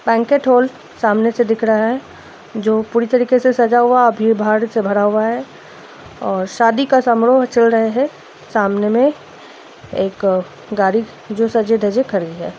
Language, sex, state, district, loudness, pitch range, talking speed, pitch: Hindi, female, Bihar, Gopalganj, -15 LUFS, 215-245 Hz, 165 wpm, 230 Hz